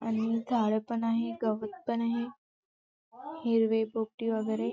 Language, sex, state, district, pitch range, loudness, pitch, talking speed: Marathi, female, Maharashtra, Chandrapur, 220-235 Hz, -31 LUFS, 230 Hz, 125 wpm